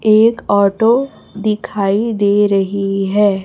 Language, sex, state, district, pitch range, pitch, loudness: Hindi, female, Chhattisgarh, Raipur, 200-220 Hz, 205 Hz, -14 LUFS